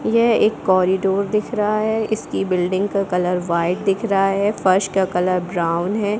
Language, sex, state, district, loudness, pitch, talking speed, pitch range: Hindi, female, Bihar, Gopalganj, -19 LUFS, 195 Hz, 185 wpm, 185-210 Hz